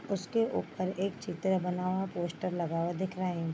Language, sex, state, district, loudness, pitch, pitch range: Hindi, female, Bihar, Vaishali, -33 LUFS, 185 Hz, 175-190 Hz